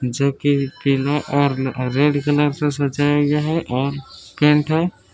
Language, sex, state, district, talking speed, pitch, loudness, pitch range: Hindi, male, Jharkhand, Palamu, 105 wpm, 145 Hz, -19 LUFS, 140-150 Hz